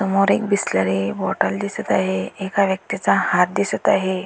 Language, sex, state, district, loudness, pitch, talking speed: Marathi, female, Maharashtra, Dhule, -20 LUFS, 190 Hz, 155 wpm